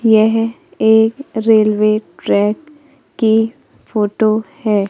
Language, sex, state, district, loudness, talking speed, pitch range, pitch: Hindi, female, Madhya Pradesh, Katni, -15 LUFS, 85 wpm, 215-230 Hz, 220 Hz